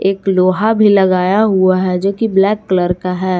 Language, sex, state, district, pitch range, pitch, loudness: Hindi, female, Jharkhand, Garhwa, 185-205 Hz, 190 Hz, -13 LUFS